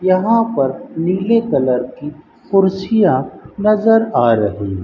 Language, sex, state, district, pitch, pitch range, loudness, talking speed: Hindi, male, Rajasthan, Bikaner, 185 Hz, 125-215 Hz, -15 LUFS, 110 wpm